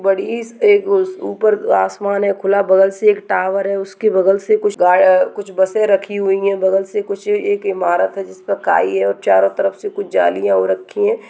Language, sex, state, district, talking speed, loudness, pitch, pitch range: Hindi, female, Uttarakhand, Tehri Garhwal, 230 wpm, -16 LUFS, 200 Hz, 190-235 Hz